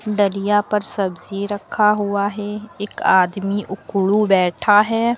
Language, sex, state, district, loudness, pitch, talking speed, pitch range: Hindi, female, Uttar Pradesh, Lucknow, -18 LUFS, 205 Hz, 125 wpm, 195-210 Hz